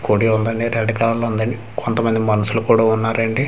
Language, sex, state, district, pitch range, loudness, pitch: Telugu, male, Andhra Pradesh, Manyam, 110-115 Hz, -18 LUFS, 115 Hz